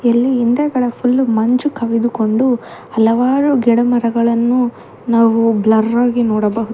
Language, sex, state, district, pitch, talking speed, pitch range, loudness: Kannada, female, Karnataka, Bangalore, 235 Hz, 100 wpm, 225-250 Hz, -14 LUFS